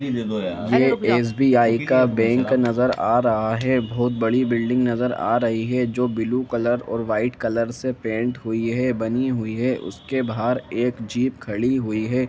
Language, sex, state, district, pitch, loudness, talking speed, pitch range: Hindi, male, Jharkhand, Jamtara, 120 Hz, -21 LUFS, 165 wpm, 115-125 Hz